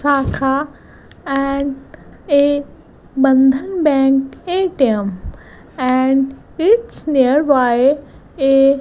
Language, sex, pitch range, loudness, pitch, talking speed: English, female, 265-290 Hz, -16 LUFS, 275 Hz, 75 wpm